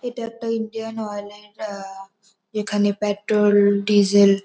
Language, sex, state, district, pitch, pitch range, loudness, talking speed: Bengali, female, West Bengal, North 24 Parganas, 205 Hz, 200-220 Hz, -21 LUFS, 135 wpm